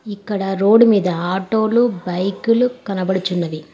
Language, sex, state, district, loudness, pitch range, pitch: Telugu, female, Telangana, Hyderabad, -17 LUFS, 185-220 Hz, 195 Hz